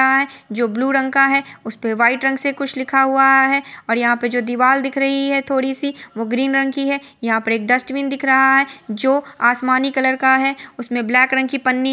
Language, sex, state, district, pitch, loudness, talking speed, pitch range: Hindi, female, Chhattisgarh, Korba, 265 Hz, -17 LUFS, 250 wpm, 245-275 Hz